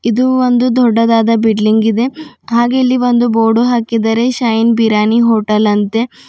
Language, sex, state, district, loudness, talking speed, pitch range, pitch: Kannada, female, Karnataka, Bidar, -12 LUFS, 135 wpm, 225-245 Hz, 230 Hz